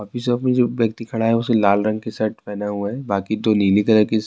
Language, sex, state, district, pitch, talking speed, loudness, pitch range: Urdu, male, Bihar, Saharsa, 110 Hz, 270 wpm, -20 LUFS, 105-115 Hz